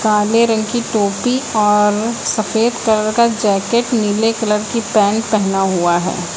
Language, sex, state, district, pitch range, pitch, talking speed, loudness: Hindi, female, Uttar Pradesh, Lucknow, 210-230 Hz, 215 Hz, 150 wpm, -15 LUFS